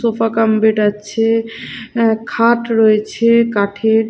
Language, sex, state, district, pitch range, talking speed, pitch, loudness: Bengali, female, Odisha, Khordha, 220-230 Hz, 100 wpm, 225 Hz, -14 LUFS